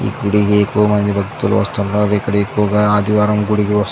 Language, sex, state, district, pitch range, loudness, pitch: Telugu, male, Andhra Pradesh, Chittoor, 100-105 Hz, -15 LUFS, 105 Hz